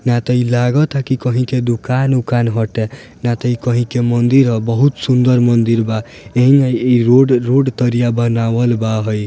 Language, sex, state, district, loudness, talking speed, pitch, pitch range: Bhojpuri, male, Bihar, Gopalganj, -14 LUFS, 190 wpm, 120 Hz, 120-125 Hz